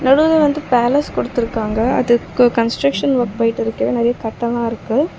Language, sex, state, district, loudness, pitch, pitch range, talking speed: Tamil, female, Tamil Nadu, Chennai, -16 LUFS, 240 Hz, 230-275 Hz, 140 wpm